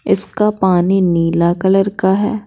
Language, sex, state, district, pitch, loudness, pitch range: Hindi, female, Bihar, Patna, 190 Hz, -14 LUFS, 175-205 Hz